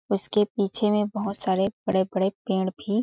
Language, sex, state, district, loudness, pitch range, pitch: Hindi, female, Chhattisgarh, Balrampur, -25 LUFS, 190-210 Hz, 200 Hz